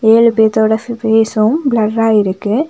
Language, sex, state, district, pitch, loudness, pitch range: Tamil, female, Tamil Nadu, Nilgiris, 220 Hz, -12 LUFS, 220-230 Hz